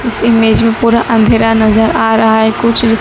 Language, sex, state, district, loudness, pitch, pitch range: Hindi, female, Madhya Pradesh, Dhar, -9 LUFS, 225 Hz, 225-230 Hz